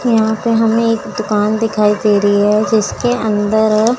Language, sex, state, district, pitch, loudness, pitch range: Hindi, female, Chandigarh, Chandigarh, 220 Hz, -14 LUFS, 210-225 Hz